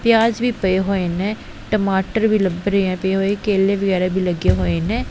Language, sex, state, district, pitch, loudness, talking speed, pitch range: Punjabi, female, Punjab, Pathankot, 195 Hz, -19 LUFS, 210 wpm, 185-210 Hz